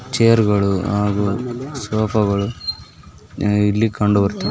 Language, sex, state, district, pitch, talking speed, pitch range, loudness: Kannada, male, Karnataka, Bijapur, 105 Hz, 80 wpm, 100-110 Hz, -18 LUFS